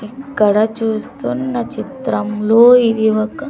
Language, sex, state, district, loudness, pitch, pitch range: Telugu, female, Andhra Pradesh, Sri Satya Sai, -15 LUFS, 220 Hz, 215-245 Hz